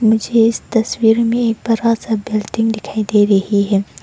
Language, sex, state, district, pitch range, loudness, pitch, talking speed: Hindi, female, Arunachal Pradesh, Longding, 210-230 Hz, -15 LUFS, 225 Hz, 180 wpm